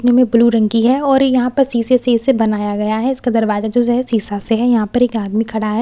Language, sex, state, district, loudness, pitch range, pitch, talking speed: Hindi, female, Bihar, Katihar, -15 LUFS, 220-245 Hz, 235 Hz, 300 wpm